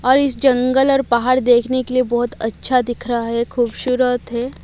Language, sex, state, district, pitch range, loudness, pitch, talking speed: Hindi, female, Odisha, Malkangiri, 240-255 Hz, -17 LUFS, 250 Hz, 195 wpm